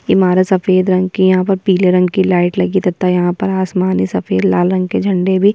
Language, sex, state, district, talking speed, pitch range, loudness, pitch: Hindi, female, Bihar, Kishanganj, 270 wpm, 180-190 Hz, -14 LUFS, 185 Hz